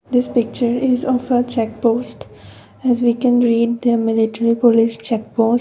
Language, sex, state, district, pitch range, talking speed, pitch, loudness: English, female, Assam, Kamrup Metropolitan, 230-245 Hz, 160 wpm, 235 Hz, -17 LUFS